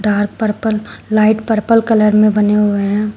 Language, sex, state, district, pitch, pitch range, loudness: Hindi, female, Uttar Pradesh, Shamli, 215 Hz, 210-220 Hz, -14 LUFS